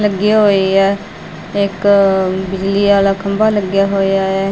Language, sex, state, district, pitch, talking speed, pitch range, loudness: Punjabi, female, Punjab, Fazilka, 195 Hz, 135 wpm, 195-205 Hz, -14 LUFS